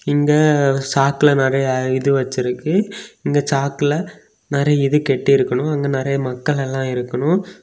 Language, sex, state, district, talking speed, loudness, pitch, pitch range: Tamil, male, Tamil Nadu, Kanyakumari, 120 wpm, -18 LUFS, 140 Hz, 135-150 Hz